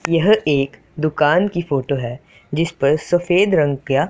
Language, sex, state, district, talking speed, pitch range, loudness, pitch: Hindi, male, Punjab, Pathankot, 160 wpm, 140-175 Hz, -18 LUFS, 155 Hz